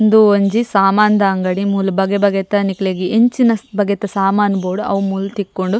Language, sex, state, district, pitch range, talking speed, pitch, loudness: Tulu, female, Karnataka, Dakshina Kannada, 195-210 Hz, 155 wpm, 200 Hz, -15 LUFS